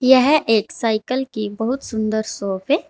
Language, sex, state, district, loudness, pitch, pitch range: Hindi, female, Uttar Pradesh, Shamli, -20 LUFS, 225 Hz, 215-265 Hz